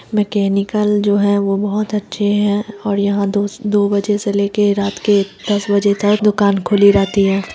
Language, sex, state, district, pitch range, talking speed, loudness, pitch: Hindi, female, Bihar, Lakhisarai, 200-205 Hz, 185 wpm, -15 LUFS, 205 Hz